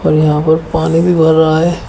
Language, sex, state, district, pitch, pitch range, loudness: Hindi, male, Uttar Pradesh, Shamli, 160 Hz, 160-165 Hz, -11 LUFS